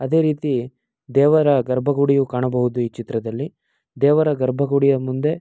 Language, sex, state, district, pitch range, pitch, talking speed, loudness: Kannada, male, Karnataka, Mysore, 125-145 Hz, 135 Hz, 120 wpm, -19 LUFS